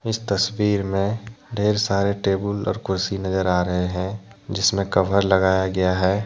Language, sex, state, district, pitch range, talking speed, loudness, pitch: Hindi, male, Jharkhand, Deoghar, 95-105 Hz, 165 wpm, -21 LUFS, 100 Hz